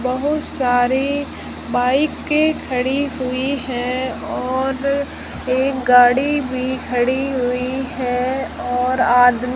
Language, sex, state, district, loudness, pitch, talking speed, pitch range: Hindi, female, Rajasthan, Jaisalmer, -18 LUFS, 255 Hz, 95 wpm, 250-275 Hz